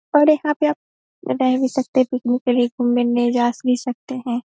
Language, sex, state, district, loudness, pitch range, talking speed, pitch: Hindi, female, Bihar, Saharsa, -19 LUFS, 245-265 Hz, 240 wpm, 250 Hz